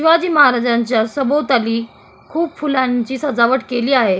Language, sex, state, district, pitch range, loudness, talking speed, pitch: Marathi, female, Maharashtra, Solapur, 235-290 Hz, -16 LUFS, 115 wpm, 260 Hz